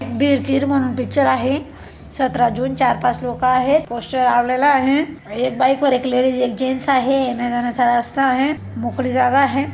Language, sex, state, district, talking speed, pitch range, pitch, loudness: Marathi, male, Maharashtra, Pune, 170 wpm, 250-275 Hz, 260 Hz, -18 LUFS